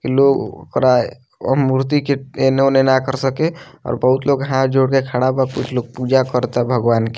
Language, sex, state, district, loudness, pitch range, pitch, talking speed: Bhojpuri, male, Bihar, Muzaffarpur, -17 LUFS, 125-135 Hz, 130 Hz, 210 wpm